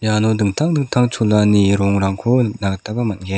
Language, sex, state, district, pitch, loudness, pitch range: Garo, male, Meghalaya, South Garo Hills, 105 Hz, -17 LUFS, 100-120 Hz